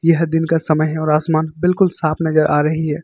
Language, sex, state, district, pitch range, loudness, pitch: Hindi, male, Uttar Pradesh, Lucknow, 155-165 Hz, -16 LUFS, 160 Hz